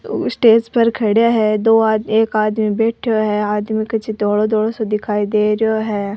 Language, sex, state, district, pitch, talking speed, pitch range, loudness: Rajasthani, female, Rajasthan, Churu, 220 Hz, 185 wpm, 210-225 Hz, -16 LUFS